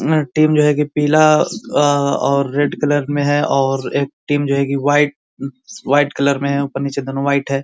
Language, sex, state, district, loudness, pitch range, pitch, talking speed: Hindi, male, Uttar Pradesh, Ghazipur, -16 LUFS, 140-145 Hz, 140 Hz, 205 wpm